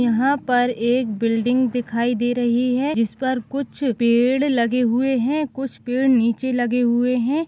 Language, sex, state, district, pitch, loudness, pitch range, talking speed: Hindi, female, Maharashtra, Dhule, 245 Hz, -20 LUFS, 235-260 Hz, 170 wpm